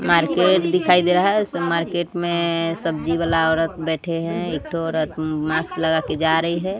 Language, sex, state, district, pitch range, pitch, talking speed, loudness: Hindi, female, Odisha, Sambalpur, 160-175 Hz, 165 Hz, 185 wpm, -20 LUFS